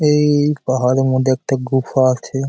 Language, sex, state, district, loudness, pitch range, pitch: Bengali, male, West Bengal, Malda, -16 LUFS, 130-140 Hz, 135 Hz